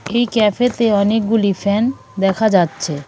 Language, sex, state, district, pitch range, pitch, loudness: Bengali, female, West Bengal, Cooch Behar, 195-225 Hz, 210 Hz, -16 LUFS